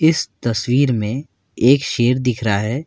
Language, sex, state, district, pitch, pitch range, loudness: Hindi, male, Uttar Pradesh, Lucknow, 125 Hz, 110-135 Hz, -18 LUFS